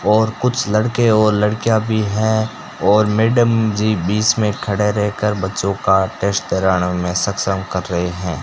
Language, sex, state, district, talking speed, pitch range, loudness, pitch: Hindi, male, Rajasthan, Bikaner, 155 wpm, 95-110 Hz, -17 LUFS, 105 Hz